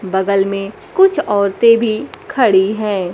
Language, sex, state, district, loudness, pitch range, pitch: Hindi, female, Bihar, Kaimur, -14 LUFS, 195-230 Hz, 200 Hz